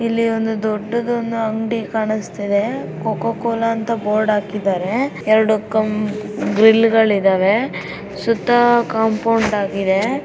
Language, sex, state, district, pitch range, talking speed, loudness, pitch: Kannada, female, Karnataka, Raichur, 210-230 Hz, 125 wpm, -18 LUFS, 220 Hz